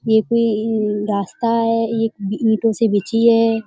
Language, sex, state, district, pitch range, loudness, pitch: Hindi, female, Uttar Pradesh, Budaun, 215-230 Hz, -18 LUFS, 225 Hz